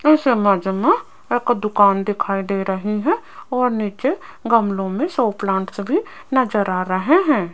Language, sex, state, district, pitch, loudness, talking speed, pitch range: Hindi, female, Rajasthan, Jaipur, 215 Hz, -19 LUFS, 160 wpm, 195-275 Hz